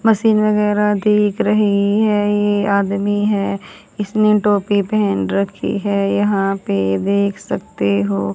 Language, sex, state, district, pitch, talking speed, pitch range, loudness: Hindi, female, Haryana, Jhajjar, 205 Hz, 130 wpm, 195-210 Hz, -17 LUFS